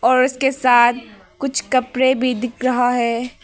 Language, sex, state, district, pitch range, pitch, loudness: Hindi, female, Arunachal Pradesh, Papum Pare, 245-260 Hz, 255 Hz, -17 LUFS